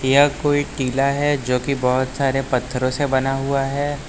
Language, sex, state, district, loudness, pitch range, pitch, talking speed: Hindi, male, Uttar Pradesh, Lucknow, -20 LUFS, 130-145 Hz, 135 Hz, 190 wpm